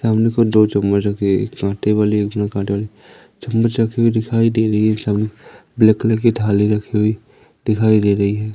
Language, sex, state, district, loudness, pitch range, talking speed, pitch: Hindi, male, Madhya Pradesh, Umaria, -17 LUFS, 105-115 Hz, 230 wpm, 110 Hz